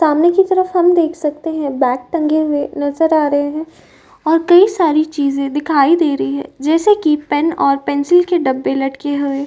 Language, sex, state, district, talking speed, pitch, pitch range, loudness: Hindi, female, Uttar Pradesh, Jyotiba Phule Nagar, 195 wpm, 305 Hz, 285-335 Hz, -15 LUFS